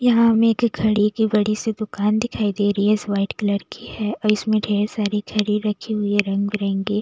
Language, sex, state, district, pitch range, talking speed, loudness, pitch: Hindi, female, Bihar, West Champaran, 205-215 Hz, 230 wpm, -20 LUFS, 210 Hz